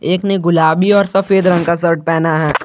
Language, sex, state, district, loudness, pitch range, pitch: Hindi, male, Jharkhand, Garhwa, -13 LUFS, 165-195 Hz, 175 Hz